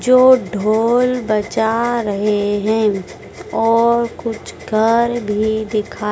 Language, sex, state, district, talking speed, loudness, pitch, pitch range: Hindi, female, Madhya Pradesh, Dhar, 100 wpm, -16 LUFS, 220 Hz, 210-235 Hz